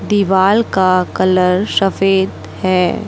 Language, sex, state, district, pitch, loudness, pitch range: Hindi, female, Chhattisgarh, Raipur, 190 Hz, -14 LUFS, 185-195 Hz